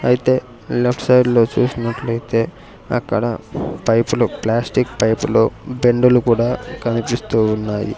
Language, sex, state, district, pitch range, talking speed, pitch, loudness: Telugu, male, Andhra Pradesh, Sri Satya Sai, 115-125 Hz, 90 wpm, 120 Hz, -17 LUFS